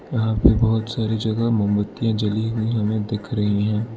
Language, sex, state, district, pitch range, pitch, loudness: Hindi, male, Arunachal Pradesh, Lower Dibang Valley, 105-115 Hz, 110 Hz, -21 LUFS